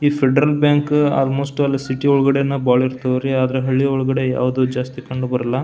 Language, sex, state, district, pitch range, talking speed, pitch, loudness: Kannada, male, Karnataka, Belgaum, 130-140 Hz, 160 wpm, 135 Hz, -18 LUFS